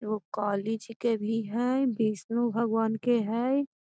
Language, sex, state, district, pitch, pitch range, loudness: Magahi, female, Bihar, Gaya, 225 Hz, 220-240 Hz, -29 LUFS